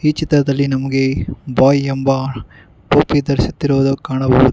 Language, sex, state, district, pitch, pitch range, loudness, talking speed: Kannada, male, Karnataka, Bangalore, 135 Hz, 130-140 Hz, -16 LUFS, 105 wpm